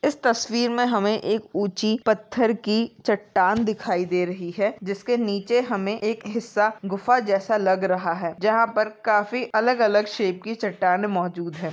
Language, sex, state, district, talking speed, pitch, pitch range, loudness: Hindi, female, Maharashtra, Aurangabad, 170 wpm, 210 Hz, 195-230 Hz, -23 LUFS